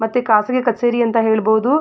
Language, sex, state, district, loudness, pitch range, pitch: Kannada, female, Karnataka, Mysore, -16 LUFS, 220-245 Hz, 230 Hz